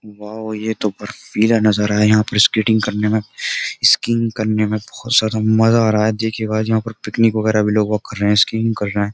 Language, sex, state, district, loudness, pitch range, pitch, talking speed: Hindi, male, Uttar Pradesh, Jyotiba Phule Nagar, -17 LUFS, 105-110 Hz, 110 Hz, 235 wpm